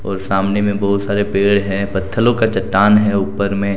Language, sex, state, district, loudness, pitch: Hindi, male, Jharkhand, Deoghar, -16 LUFS, 100 Hz